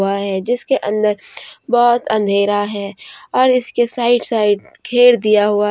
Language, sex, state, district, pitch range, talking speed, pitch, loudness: Hindi, female, Jharkhand, Deoghar, 205-245 Hz, 135 wpm, 215 Hz, -15 LUFS